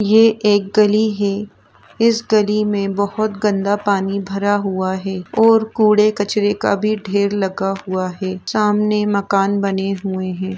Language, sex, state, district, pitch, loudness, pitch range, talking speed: Hindi, female, Uttar Pradesh, Etah, 205 Hz, -17 LUFS, 195-210 Hz, 155 wpm